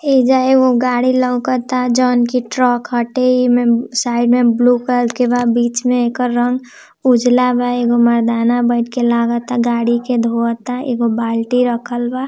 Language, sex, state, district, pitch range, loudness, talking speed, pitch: Hindi, female, Bihar, Gopalganj, 235-250 Hz, -15 LUFS, 160 wpm, 245 Hz